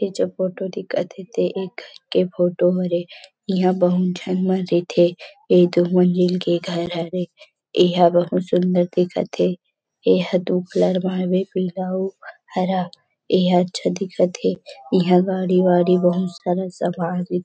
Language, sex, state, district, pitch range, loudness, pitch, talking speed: Chhattisgarhi, female, Chhattisgarh, Rajnandgaon, 175-185 Hz, -20 LUFS, 180 Hz, 160 wpm